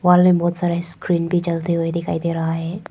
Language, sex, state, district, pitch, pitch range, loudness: Hindi, female, Arunachal Pradesh, Papum Pare, 170 Hz, 165-175 Hz, -20 LUFS